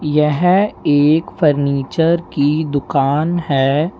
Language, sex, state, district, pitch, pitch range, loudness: Hindi, male, Uttar Pradesh, Lalitpur, 150 Hz, 140-165 Hz, -15 LUFS